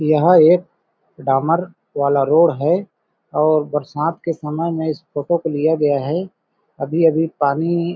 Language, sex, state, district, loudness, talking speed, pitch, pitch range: Hindi, male, Chhattisgarh, Balrampur, -18 LUFS, 145 wpm, 160 Hz, 145-170 Hz